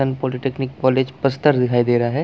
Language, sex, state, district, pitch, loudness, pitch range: Hindi, male, Chhattisgarh, Bastar, 130 Hz, -19 LUFS, 125-135 Hz